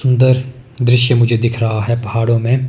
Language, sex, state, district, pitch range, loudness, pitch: Hindi, male, Himachal Pradesh, Shimla, 115-130 Hz, -14 LUFS, 120 Hz